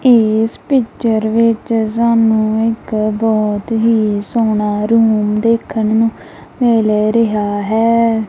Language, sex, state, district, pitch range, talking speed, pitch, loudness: Punjabi, female, Punjab, Kapurthala, 215-230 Hz, 100 wpm, 225 Hz, -14 LUFS